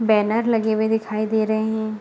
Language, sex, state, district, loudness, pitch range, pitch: Hindi, female, Bihar, Araria, -21 LUFS, 215-220 Hz, 220 Hz